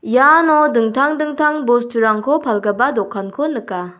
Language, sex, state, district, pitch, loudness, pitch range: Garo, female, Meghalaya, South Garo Hills, 240 Hz, -15 LUFS, 215-300 Hz